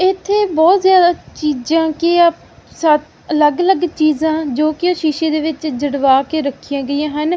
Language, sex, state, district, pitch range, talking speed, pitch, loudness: Punjabi, female, Punjab, Fazilka, 300-345 Hz, 155 wpm, 315 Hz, -15 LUFS